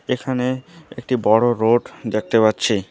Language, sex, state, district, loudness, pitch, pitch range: Bengali, female, West Bengal, Alipurduar, -19 LUFS, 120 Hz, 110-125 Hz